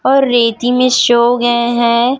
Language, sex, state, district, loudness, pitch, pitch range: Hindi, female, Chhattisgarh, Raipur, -12 LUFS, 240 Hz, 235-250 Hz